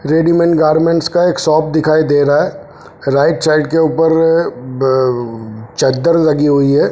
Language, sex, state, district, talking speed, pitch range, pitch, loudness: Hindi, male, Punjab, Fazilka, 165 wpm, 140-165 Hz, 155 Hz, -13 LUFS